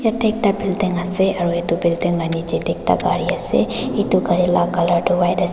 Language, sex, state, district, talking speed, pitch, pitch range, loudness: Nagamese, female, Nagaland, Dimapur, 215 wpm, 175 Hz, 170-190 Hz, -19 LUFS